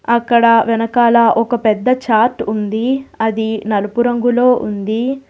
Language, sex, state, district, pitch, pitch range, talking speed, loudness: Telugu, female, Telangana, Hyderabad, 230 Hz, 220-245 Hz, 115 wpm, -14 LUFS